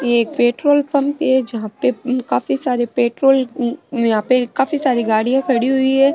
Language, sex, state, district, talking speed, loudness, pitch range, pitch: Rajasthani, female, Rajasthan, Nagaur, 175 wpm, -17 LUFS, 235-270 Hz, 255 Hz